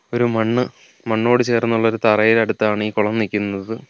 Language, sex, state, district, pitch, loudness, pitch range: Malayalam, male, Kerala, Kollam, 110 Hz, -18 LUFS, 105-115 Hz